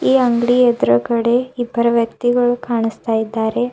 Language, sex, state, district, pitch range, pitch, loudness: Kannada, female, Karnataka, Bidar, 230-245 Hz, 235 Hz, -16 LUFS